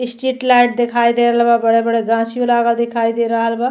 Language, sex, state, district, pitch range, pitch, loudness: Bhojpuri, female, Uttar Pradesh, Deoria, 230-240 Hz, 235 Hz, -15 LUFS